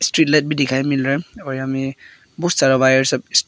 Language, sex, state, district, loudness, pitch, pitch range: Hindi, male, Arunachal Pradesh, Papum Pare, -18 LUFS, 135 Hz, 135-150 Hz